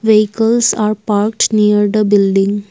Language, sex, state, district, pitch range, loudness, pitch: English, female, Assam, Kamrup Metropolitan, 205-215 Hz, -13 LUFS, 210 Hz